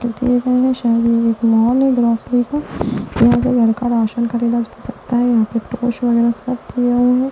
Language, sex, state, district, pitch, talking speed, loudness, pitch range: Hindi, female, Delhi, New Delhi, 240 Hz, 180 wpm, -16 LUFS, 230-245 Hz